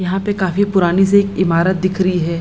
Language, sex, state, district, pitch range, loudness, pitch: Hindi, female, Bihar, Lakhisarai, 180-195 Hz, -15 LUFS, 185 Hz